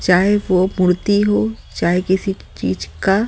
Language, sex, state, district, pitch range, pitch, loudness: Hindi, male, Delhi, New Delhi, 180-205 Hz, 190 Hz, -17 LUFS